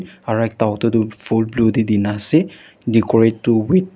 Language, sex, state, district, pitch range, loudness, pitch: Nagamese, male, Nagaland, Dimapur, 110-115 Hz, -17 LUFS, 115 Hz